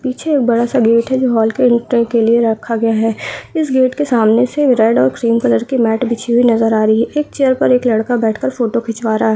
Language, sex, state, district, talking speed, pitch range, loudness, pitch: Hindi, female, Bihar, Saharsa, 265 wpm, 225-255 Hz, -14 LUFS, 235 Hz